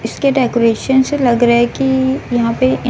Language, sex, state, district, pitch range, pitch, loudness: Hindi, female, Chhattisgarh, Raipur, 240-265 Hz, 255 Hz, -14 LUFS